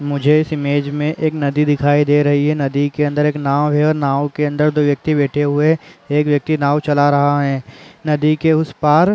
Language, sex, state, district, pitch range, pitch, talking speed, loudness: Chhattisgarhi, male, Chhattisgarh, Raigarh, 145-150 Hz, 145 Hz, 225 wpm, -16 LUFS